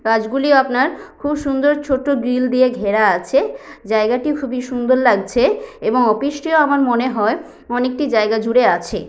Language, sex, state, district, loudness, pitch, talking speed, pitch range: Bengali, female, West Bengal, Jhargram, -17 LUFS, 255 Hz, 150 wpm, 235-285 Hz